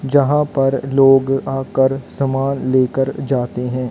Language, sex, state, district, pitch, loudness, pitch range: Hindi, female, Haryana, Jhajjar, 135 Hz, -17 LUFS, 130-135 Hz